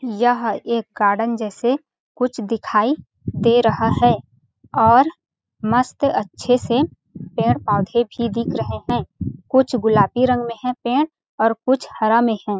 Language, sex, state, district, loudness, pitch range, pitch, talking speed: Hindi, female, Chhattisgarh, Balrampur, -19 LUFS, 220-250 Hz, 235 Hz, 150 wpm